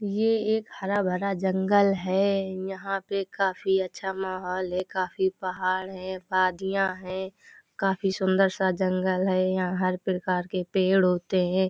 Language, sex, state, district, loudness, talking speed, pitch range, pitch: Hindi, female, Uttar Pradesh, Hamirpur, -26 LUFS, 150 wpm, 185-195 Hz, 190 Hz